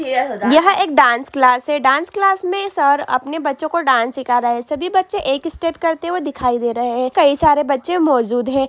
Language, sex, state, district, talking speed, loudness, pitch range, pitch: Hindi, female, Uttar Pradesh, Hamirpur, 230 wpm, -16 LUFS, 255-330 Hz, 285 Hz